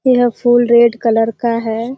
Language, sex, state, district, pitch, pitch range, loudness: Hindi, female, Bihar, Kishanganj, 235 Hz, 230-245 Hz, -13 LUFS